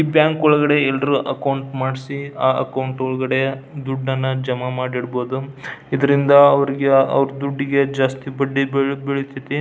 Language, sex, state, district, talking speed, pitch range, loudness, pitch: Kannada, male, Karnataka, Belgaum, 125 wpm, 130-140 Hz, -18 LUFS, 135 Hz